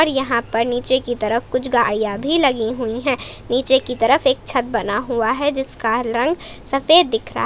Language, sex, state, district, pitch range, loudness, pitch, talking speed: Hindi, female, Jharkhand, Palamu, 230-270 Hz, -18 LUFS, 250 Hz, 200 wpm